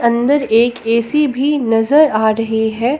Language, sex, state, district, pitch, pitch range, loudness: Hindi, female, Jharkhand, Palamu, 235 Hz, 225-285 Hz, -14 LUFS